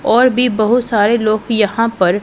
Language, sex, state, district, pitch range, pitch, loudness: Hindi, female, Punjab, Pathankot, 215-240 Hz, 225 Hz, -14 LUFS